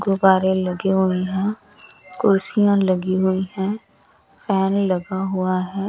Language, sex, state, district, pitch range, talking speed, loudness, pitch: Hindi, female, Chandigarh, Chandigarh, 185-200 Hz, 120 wpm, -20 LUFS, 190 Hz